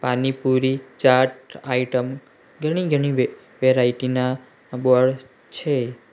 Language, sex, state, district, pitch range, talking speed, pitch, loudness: Gujarati, male, Gujarat, Valsad, 125-135 Hz, 90 wpm, 130 Hz, -21 LUFS